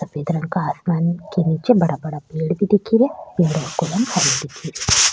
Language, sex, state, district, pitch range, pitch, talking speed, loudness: Rajasthani, female, Rajasthan, Churu, 155-190 Hz, 170 Hz, 210 wpm, -19 LUFS